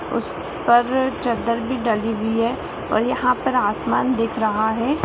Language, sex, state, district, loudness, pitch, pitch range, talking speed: Hindi, female, Bihar, Purnia, -21 LUFS, 230 Hz, 225-245 Hz, 165 wpm